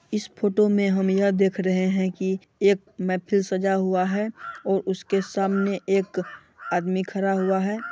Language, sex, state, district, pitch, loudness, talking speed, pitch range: Hindi, female, Bihar, Supaul, 195 Hz, -24 LUFS, 175 wpm, 190-200 Hz